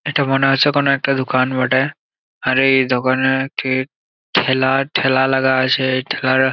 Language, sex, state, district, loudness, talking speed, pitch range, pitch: Bengali, male, West Bengal, Jalpaiguri, -16 LUFS, 145 wpm, 130-135 Hz, 130 Hz